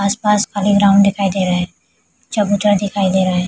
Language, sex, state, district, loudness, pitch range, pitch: Hindi, female, Bihar, Araria, -15 LUFS, 190-205 Hz, 200 Hz